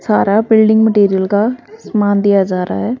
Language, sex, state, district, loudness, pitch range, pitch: Hindi, female, Haryana, Rohtak, -13 LUFS, 200-220 Hz, 210 Hz